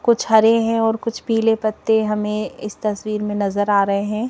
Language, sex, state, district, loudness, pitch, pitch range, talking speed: Hindi, female, Madhya Pradesh, Bhopal, -19 LUFS, 215 Hz, 210-225 Hz, 210 wpm